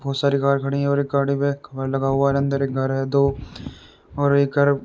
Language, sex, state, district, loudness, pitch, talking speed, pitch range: Hindi, male, Uttar Pradesh, Muzaffarnagar, -21 LUFS, 140 Hz, 270 wpm, 135-140 Hz